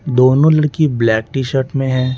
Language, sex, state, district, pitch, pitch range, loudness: Hindi, male, Bihar, Patna, 135 Hz, 130-150 Hz, -14 LUFS